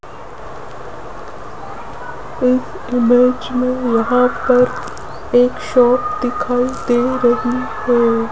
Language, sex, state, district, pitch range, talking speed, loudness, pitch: Hindi, female, Rajasthan, Jaipur, 245-250 Hz, 80 wpm, -16 LUFS, 245 Hz